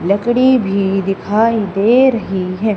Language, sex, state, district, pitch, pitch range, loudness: Hindi, female, Madhya Pradesh, Umaria, 205 Hz, 195-230 Hz, -14 LUFS